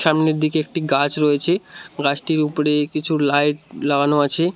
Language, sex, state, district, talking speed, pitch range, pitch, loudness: Bengali, male, West Bengal, Cooch Behar, 145 wpm, 145-155 Hz, 150 Hz, -19 LUFS